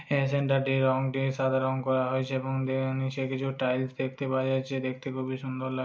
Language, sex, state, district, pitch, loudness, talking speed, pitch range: Bajjika, male, Bihar, Vaishali, 130 Hz, -29 LUFS, 225 wpm, 130-135 Hz